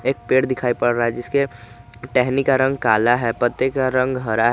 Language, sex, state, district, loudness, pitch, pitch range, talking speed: Hindi, male, Jharkhand, Garhwa, -19 LUFS, 125 Hz, 120-130 Hz, 210 wpm